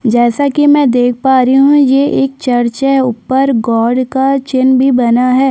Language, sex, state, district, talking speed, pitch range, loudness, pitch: Hindi, female, Chhattisgarh, Sukma, 195 wpm, 245-270 Hz, -11 LUFS, 260 Hz